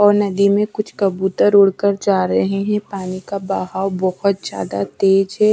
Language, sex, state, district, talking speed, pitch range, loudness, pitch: Hindi, female, Bihar, West Champaran, 175 wpm, 190-205 Hz, -17 LUFS, 195 Hz